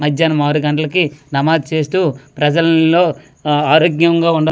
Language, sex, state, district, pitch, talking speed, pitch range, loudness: Telugu, male, Andhra Pradesh, Manyam, 155 Hz, 120 wpm, 150-165 Hz, -14 LUFS